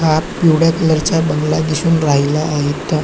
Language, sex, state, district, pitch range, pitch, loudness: Marathi, male, Maharashtra, Chandrapur, 150-165 Hz, 155 Hz, -15 LUFS